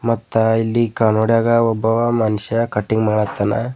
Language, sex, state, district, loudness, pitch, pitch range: Kannada, male, Karnataka, Bidar, -17 LUFS, 115 Hz, 110-115 Hz